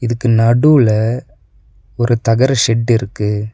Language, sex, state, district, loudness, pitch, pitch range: Tamil, male, Tamil Nadu, Nilgiris, -13 LUFS, 115 Hz, 105-120 Hz